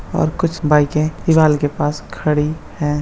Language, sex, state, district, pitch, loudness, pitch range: Hindi, male, Bihar, Darbhanga, 150 Hz, -17 LUFS, 150-160 Hz